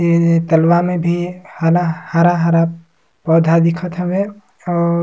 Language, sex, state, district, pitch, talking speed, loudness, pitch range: Surgujia, male, Chhattisgarh, Sarguja, 170 Hz, 120 wpm, -15 LUFS, 165-175 Hz